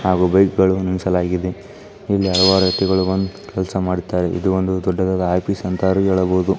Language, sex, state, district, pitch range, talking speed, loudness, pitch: Kannada, male, Karnataka, Chamarajanagar, 90-95 Hz, 145 wpm, -18 LUFS, 95 Hz